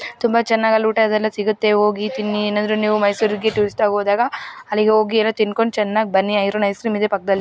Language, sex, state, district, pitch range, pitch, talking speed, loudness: Kannada, female, Karnataka, Mysore, 210-220 Hz, 215 Hz, 200 wpm, -18 LUFS